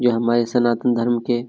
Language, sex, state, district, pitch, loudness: Hindi, male, Jharkhand, Jamtara, 120 Hz, -19 LUFS